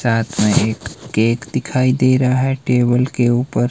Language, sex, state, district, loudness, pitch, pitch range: Hindi, male, Himachal Pradesh, Shimla, -16 LUFS, 125 Hz, 115-130 Hz